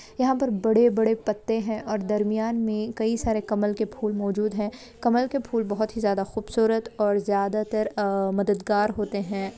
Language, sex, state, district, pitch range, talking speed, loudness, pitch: Hindi, female, Goa, North and South Goa, 205-225 Hz, 170 wpm, -25 LUFS, 215 Hz